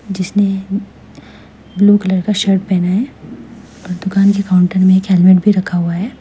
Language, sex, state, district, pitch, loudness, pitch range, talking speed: Hindi, female, Meghalaya, West Garo Hills, 195 Hz, -13 LUFS, 185-200 Hz, 175 wpm